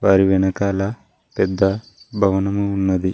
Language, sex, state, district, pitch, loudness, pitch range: Telugu, male, Telangana, Mahabubabad, 95 Hz, -19 LUFS, 95-100 Hz